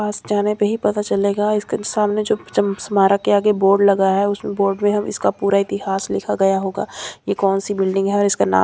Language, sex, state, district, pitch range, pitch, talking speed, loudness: Hindi, female, Punjab, Kapurthala, 195-205 Hz, 200 Hz, 245 wpm, -18 LUFS